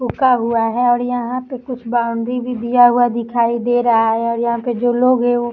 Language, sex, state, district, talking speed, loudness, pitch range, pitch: Hindi, female, Uttar Pradesh, Budaun, 240 wpm, -16 LUFS, 235-245 Hz, 240 Hz